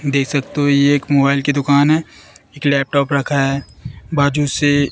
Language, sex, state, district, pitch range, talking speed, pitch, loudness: Hindi, female, Madhya Pradesh, Katni, 140-145 Hz, 185 wpm, 140 Hz, -16 LUFS